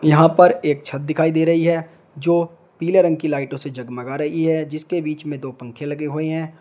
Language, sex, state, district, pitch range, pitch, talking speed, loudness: Hindi, male, Uttar Pradesh, Shamli, 145-165 Hz, 155 Hz, 225 wpm, -19 LUFS